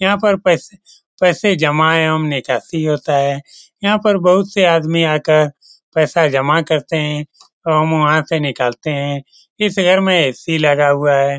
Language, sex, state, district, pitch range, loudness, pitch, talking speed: Hindi, male, Bihar, Lakhisarai, 145-180 Hz, -15 LUFS, 155 Hz, 175 wpm